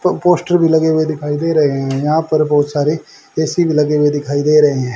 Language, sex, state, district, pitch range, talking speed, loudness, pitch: Hindi, male, Haryana, Charkhi Dadri, 145-160 Hz, 255 wpm, -14 LUFS, 150 Hz